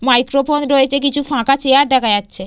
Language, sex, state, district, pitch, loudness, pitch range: Bengali, female, West Bengal, Purulia, 275 Hz, -14 LUFS, 250-280 Hz